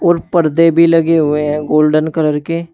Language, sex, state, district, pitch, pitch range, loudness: Hindi, male, Uttar Pradesh, Shamli, 165 Hz, 150-165 Hz, -13 LUFS